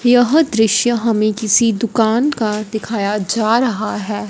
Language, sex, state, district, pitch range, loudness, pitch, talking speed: Hindi, female, Punjab, Fazilka, 215-235 Hz, -16 LUFS, 220 Hz, 140 wpm